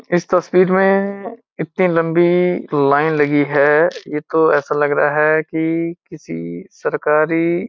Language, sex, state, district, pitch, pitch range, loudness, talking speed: Hindi, male, Uttarakhand, Uttarkashi, 160 Hz, 150-180 Hz, -16 LUFS, 150 wpm